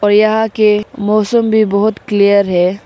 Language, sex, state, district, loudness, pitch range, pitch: Hindi, female, Arunachal Pradesh, Lower Dibang Valley, -12 LUFS, 200-220 Hz, 210 Hz